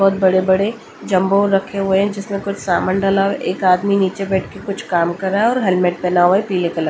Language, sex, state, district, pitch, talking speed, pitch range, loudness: Hindi, female, Delhi, New Delhi, 195 Hz, 245 wpm, 185-200 Hz, -17 LUFS